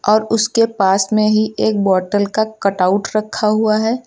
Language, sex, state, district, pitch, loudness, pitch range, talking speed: Hindi, male, Uttar Pradesh, Lucknow, 215 Hz, -16 LUFS, 200-220 Hz, 190 wpm